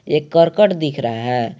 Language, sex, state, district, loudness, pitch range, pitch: Hindi, male, Jharkhand, Garhwa, -16 LUFS, 125-165 Hz, 150 Hz